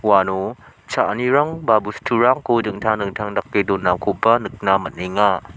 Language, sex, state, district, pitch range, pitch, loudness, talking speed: Garo, male, Meghalaya, South Garo Hills, 95-115 Hz, 105 Hz, -19 LUFS, 110 wpm